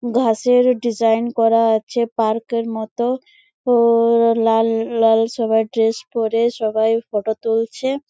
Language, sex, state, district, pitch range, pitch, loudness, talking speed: Bengali, female, West Bengal, Jalpaiguri, 225-240 Hz, 230 Hz, -18 LUFS, 120 wpm